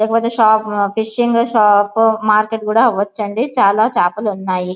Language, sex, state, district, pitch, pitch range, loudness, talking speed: Telugu, female, Andhra Pradesh, Visakhapatnam, 215 Hz, 205-225 Hz, -14 LUFS, 140 wpm